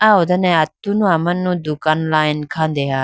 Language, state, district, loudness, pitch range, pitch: Idu Mishmi, Arunachal Pradesh, Lower Dibang Valley, -17 LUFS, 155-180 Hz, 160 Hz